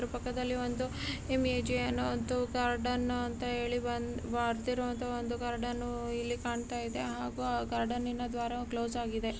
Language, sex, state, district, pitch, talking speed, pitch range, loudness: Kannada, female, Karnataka, Gulbarga, 240 Hz, 155 wpm, 235-245 Hz, -35 LUFS